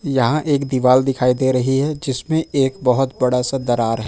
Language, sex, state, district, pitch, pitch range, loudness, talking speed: Hindi, male, Jharkhand, Ranchi, 130 Hz, 125-140 Hz, -18 LUFS, 205 wpm